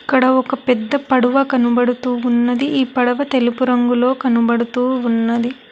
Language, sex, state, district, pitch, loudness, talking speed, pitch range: Telugu, female, Telangana, Hyderabad, 250 Hz, -16 LUFS, 125 wpm, 245-260 Hz